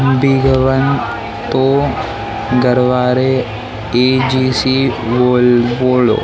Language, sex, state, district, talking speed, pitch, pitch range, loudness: Hindi, male, Maharashtra, Mumbai Suburban, 65 wpm, 125 Hz, 120-130 Hz, -14 LUFS